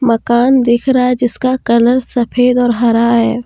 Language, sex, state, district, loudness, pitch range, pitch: Hindi, female, Jharkhand, Deoghar, -12 LUFS, 235-250 Hz, 245 Hz